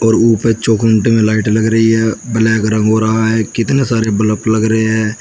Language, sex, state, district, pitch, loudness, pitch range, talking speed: Hindi, male, Uttar Pradesh, Shamli, 110 Hz, -13 LUFS, 110-115 Hz, 205 wpm